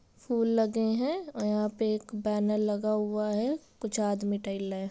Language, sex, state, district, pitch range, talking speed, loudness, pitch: Hindi, female, Bihar, Gopalganj, 210-225 Hz, 160 wpm, -30 LUFS, 215 Hz